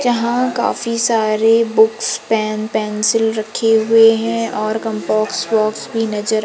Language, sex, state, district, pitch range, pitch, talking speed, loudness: Hindi, female, Madhya Pradesh, Umaria, 215-230 Hz, 225 Hz, 130 wpm, -16 LUFS